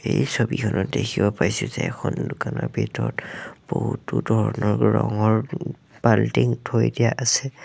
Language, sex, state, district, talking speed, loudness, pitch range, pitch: Assamese, male, Assam, Sonitpur, 125 wpm, -23 LUFS, 105-135 Hz, 110 Hz